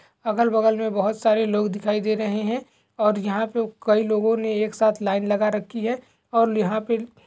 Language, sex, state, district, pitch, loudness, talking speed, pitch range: Hindi, male, Chhattisgarh, Sukma, 220 Hz, -23 LUFS, 205 wpm, 210-225 Hz